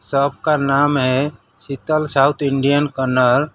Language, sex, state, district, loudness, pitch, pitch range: Hindi, male, Gujarat, Valsad, -17 LUFS, 140 Hz, 130-145 Hz